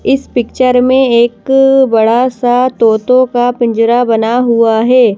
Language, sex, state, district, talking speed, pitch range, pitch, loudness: Hindi, female, Madhya Pradesh, Bhopal, 140 wpm, 230-255 Hz, 245 Hz, -10 LUFS